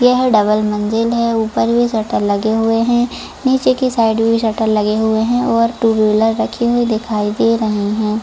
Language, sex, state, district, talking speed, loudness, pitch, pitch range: Hindi, female, Jharkhand, Jamtara, 205 wpm, -15 LUFS, 225 Hz, 215-235 Hz